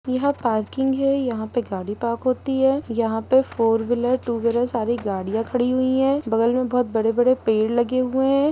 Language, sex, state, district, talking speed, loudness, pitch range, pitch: Hindi, female, Bihar, Madhepura, 190 wpm, -21 LUFS, 225-260 Hz, 240 Hz